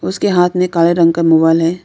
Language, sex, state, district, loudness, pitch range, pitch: Hindi, female, Arunachal Pradesh, Lower Dibang Valley, -12 LUFS, 165-180 Hz, 170 Hz